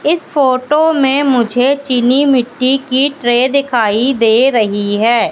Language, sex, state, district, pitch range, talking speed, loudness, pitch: Hindi, female, Madhya Pradesh, Katni, 240-280 Hz, 135 wpm, -12 LUFS, 255 Hz